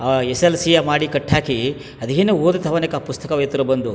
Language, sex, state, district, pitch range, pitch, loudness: Kannada, male, Karnataka, Chamarajanagar, 135-165 Hz, 145 Hz, -18 LUFS